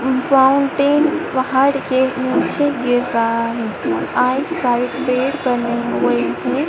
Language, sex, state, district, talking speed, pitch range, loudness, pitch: Hindi, female, Madhya Pradesh, Dhar, 55 wpm, 245-280 Hz, -17 LUFS, 260 Hz